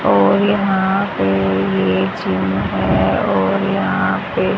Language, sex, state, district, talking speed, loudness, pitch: Hindi, female, Haryana, Rohtak, 120 wpm, -16 LUFS, 95 Hz